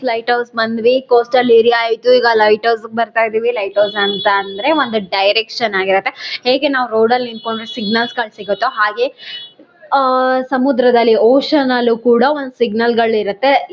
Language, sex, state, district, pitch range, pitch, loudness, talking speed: Kannada, female, Karnataka, Mysore, 220-255 Hz, 235 Hz, -14 LUFS, 150 wpm